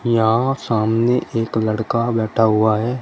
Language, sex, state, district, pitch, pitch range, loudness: Hindi, male, Uttar Pradesh, Shamli, 115 Hz, 110-120 Hz, -18 LUFS